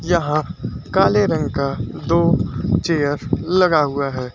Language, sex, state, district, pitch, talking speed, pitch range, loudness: Hindi, male, Uttar Pradesh, Lucknow, 150 Hz, 125 wpm, 140-170 Hz, -19 LUFS